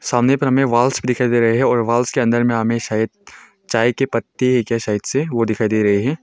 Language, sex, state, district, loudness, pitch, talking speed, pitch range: Hindi, male, Arunachal Pradesh, Longding, -17 LUFS, 120 Hz, 270 wpm, 115-130 Hz